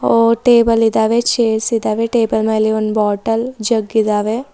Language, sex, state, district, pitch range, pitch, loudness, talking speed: Kannada, female, Karnataka, Bidar, 220-230 Hz, 225 Hz, -15 LUFS, 145 wpm